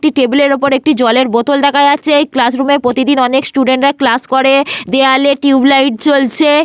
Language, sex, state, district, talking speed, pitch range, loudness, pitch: Bengali, female, Jharkhand, Sahebganj, 170 wpm, 260-285 Hz, -10 LUFS, 275 Hz